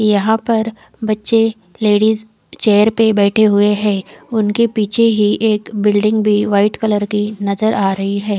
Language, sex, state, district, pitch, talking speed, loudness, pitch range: Hindi, female, Odisha, Khordha, 215 Hz, 155 wpm, -15 LUFS, 205-220 Hz